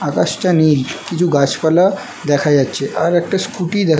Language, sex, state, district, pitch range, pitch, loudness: Bengali, male, West Bengal, Jhargram, 150-185 Hz, 170 Hz, -15 LUFS